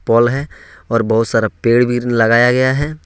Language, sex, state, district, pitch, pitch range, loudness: Hindi, male, Jharkhand, Ranchi, 120 Hz, 115-130 Hz, -14 LUFS